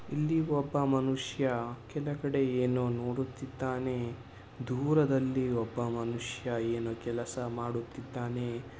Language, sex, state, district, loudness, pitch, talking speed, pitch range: Kannada, male, Karnataka, Shimoga, -33 LUFS, 125 Hz, 80 wpm, 120-135 Hz